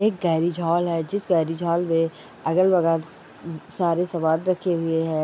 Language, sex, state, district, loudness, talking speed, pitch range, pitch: Hindi, male, Chhattisgarh, Sukma, -23 LUFS, 170 wpm, 165-175 Hz, 170 Hz